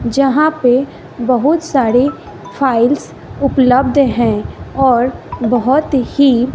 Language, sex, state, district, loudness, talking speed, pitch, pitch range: Hindi, female, Bihar, West Champaran, -13 LUFS, 90 wpm, 260 Hz, 245-275 Hz